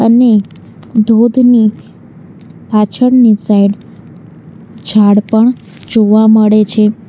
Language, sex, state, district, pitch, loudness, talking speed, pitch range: Gujarati, female, Gujarat, Valsad, 215 Hz, -9 LUFS, 75 wpm, 210-230 Hz